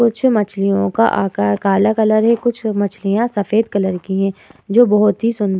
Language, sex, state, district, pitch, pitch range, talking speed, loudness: Hindi, female, Uttar Pradesh, Muzaffarnagar, 205 Hz, 190-220 Hz, 205 wpm, -16 LUFS